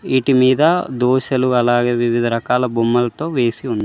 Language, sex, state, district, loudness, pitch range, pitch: Telugu, male, Telangana, Mahabubabad, -16 LUFS, 120-130 Hz, 125 Hz